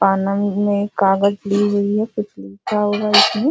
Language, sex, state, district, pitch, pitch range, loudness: Hindi, female, Bihar, Jahanabad, 205 Hz, 200-210 Hz, -17 LUFS